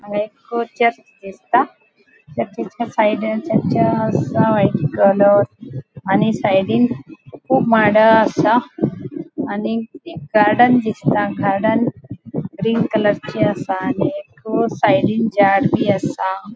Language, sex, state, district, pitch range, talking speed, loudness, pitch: Konkani, female, Goa, North and South Goa, 200-235 Hz, 85 wpm, -17 LUFS, 220 Hz